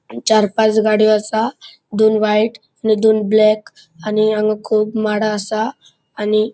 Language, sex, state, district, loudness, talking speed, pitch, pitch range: Konkani, male, Goa, North and South Goa, -16 LUFS, 145 wpm, 215 Hz, 215-220 Hz